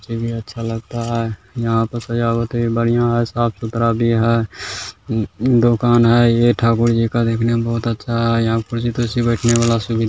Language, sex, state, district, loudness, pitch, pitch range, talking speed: Hindi, male, Bihar, Kishanganj, -17 LUFS, 115 Hz, 115-120 Hz, 200 wpm